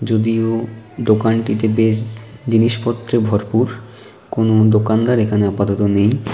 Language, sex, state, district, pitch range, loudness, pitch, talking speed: Bengali, male, West Bengal, Jhargram, 110-115 Hz, -16 LUFS, 110 Hz, 95 wpm